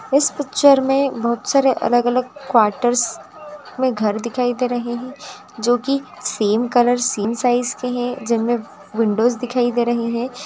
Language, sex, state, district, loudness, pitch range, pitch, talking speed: Hindi, female, Bihar, Purnia, -19 LUFS, 235-265 Hz, 245 Hz, 140 wpm